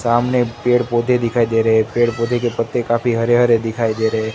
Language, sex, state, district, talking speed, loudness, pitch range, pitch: Hindi, male, Gujarat, Gandhinagar, 235 wpm, -17 LUFS, 115-120 Hz, 120 Hz